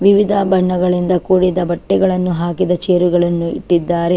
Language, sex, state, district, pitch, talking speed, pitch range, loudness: Kannada, female, Karnataka, Chamarajanagar, 180 Hz, 115 wpm, 175-185 Hz, -15 LUFS